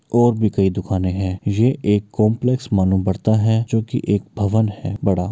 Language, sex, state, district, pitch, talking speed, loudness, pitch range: Maithili, male, Bihar, Bhagalpur, 105 Hz, 205 wpm, -19 LUFS, 95-110 Hz